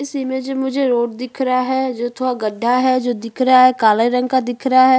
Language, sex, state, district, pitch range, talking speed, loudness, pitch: Hindi, female, Chhattisgarh, Bastar, 240-260 Hz, 275 wpm, -17 LUFS, 255 Hz